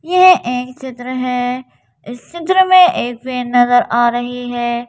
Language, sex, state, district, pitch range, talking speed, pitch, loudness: Hindi, female, Madhya Pradesh, Bhopal, 245-265 Hz, 160 wpm, 250 Hz, -14 LUFS